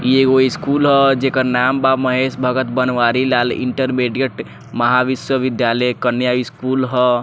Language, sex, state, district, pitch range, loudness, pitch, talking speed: Bhojpuri, male, Bihar, Muzaffarpur, 125-130 Hz, -16 LUFS, 130 Hz, 140 wpm